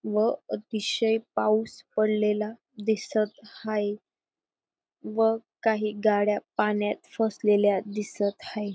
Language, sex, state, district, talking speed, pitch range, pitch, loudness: Marathi, female, Maharashtra, Dhule, 90 wpm, 210-220 Hz, 215 Hz, -27 LUFS